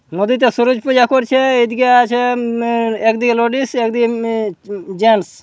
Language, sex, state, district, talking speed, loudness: Bengali, male, West Bengal, Purulia, 165 wpm, -14 LUFS